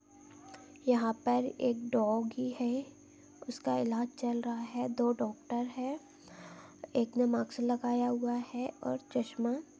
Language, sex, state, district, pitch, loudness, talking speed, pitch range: Hindi, female, Chhattisgarh, Balrampur, 245 Hz, -34 LUFS, 130 wpm, 240-260 Hz